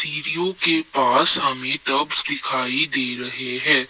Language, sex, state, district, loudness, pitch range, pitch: Hindi, male, Assam, Kamrup Metropolitan, -18 LUFS, 125-180 Hz, 150 Hz